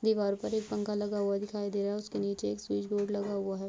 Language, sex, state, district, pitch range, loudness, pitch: Hindi, female, Uttar Pradesh, Muzaffarnagar, 195-205 Hz, -33 LUFS, 200 Hz